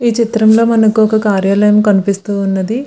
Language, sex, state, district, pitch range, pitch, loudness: Telugu, female, Andhra Pradesh, Visakhapatnam, 200-225 Hz, 215 Hz, -11 LUFS